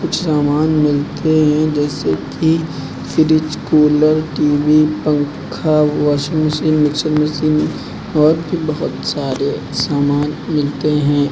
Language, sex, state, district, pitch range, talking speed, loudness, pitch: Hindi, male, Uttar Pradesh, Lucknow, 145-155 Hz, 110 wpm, -16 LUFS, 150 Hz